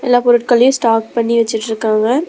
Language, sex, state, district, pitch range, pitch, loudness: Tamil, female, Tamil Nadu, Namakkal, 225-245 Hz, 235 Hz, -13 LUFS